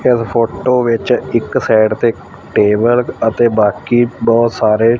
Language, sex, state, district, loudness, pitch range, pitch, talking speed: Punjabi, male, Punjab, Fazilka, -13 LUFS, 110-120 Hz, 115 Hz, 130 wpm